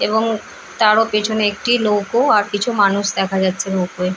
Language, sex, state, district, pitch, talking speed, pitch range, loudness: Bengali, female, West Bengal, Paschim Medinipur, 205 Hz, 315 wpm, 195-220 Hz, -17 LUFS